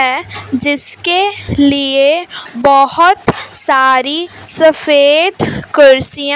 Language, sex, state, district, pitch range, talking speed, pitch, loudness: Hindi, female, Punjab, Fazilka, 275-335 Hz, 65 wpm, 290 Hz, -11 LUFS